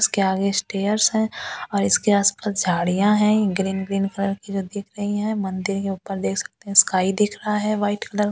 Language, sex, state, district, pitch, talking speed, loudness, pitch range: Hindi, female, Delhi, New Delhi, 200 Hz, 215 wpm, -21 LUFS, 195-210 Hz